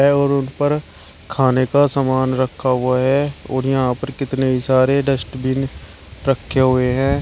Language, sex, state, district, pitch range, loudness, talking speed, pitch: Hindi, male, Uttar Pradesh, Shamli, 130-140 Hz, -18 LUFS, 160 wpm, 130 Hz